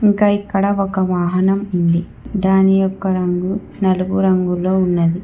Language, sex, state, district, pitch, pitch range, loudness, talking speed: Telugu, female, Telangana, Hyderabad, 190 Hz, 180-195 Hz, -17 LUFS, 125 wpm